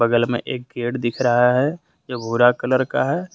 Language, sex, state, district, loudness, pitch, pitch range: Hindi, male, Jharkhand, Deoghar, -20 LUFS, 125 Hz, 120-130 Hz